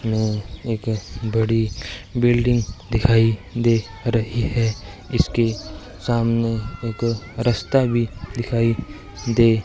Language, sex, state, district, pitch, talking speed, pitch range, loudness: Hindi, male, Rajasthan, Bikaner, 115 Hz, 95 wpm, 105-115 Hz, -21 LUFS